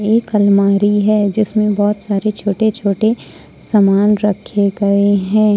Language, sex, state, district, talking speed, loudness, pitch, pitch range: Hindi, female, Jharkhand, Ranchi, 130 wpm, -14 LUFS, 205 Hz, 200-215 Hz